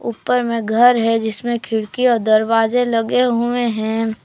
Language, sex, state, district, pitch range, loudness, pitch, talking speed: Hindi, female, Jharkhand, Palamu, 225-245 Hz, -17 LUFS, 230 Hz, 155 wpm